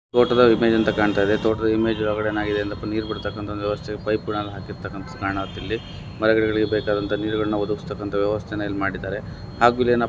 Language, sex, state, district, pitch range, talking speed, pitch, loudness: Kannada, male, Karnataka, Bellary, 105-110 Hz, 160 wpm, 105 Hz, -22 LUFS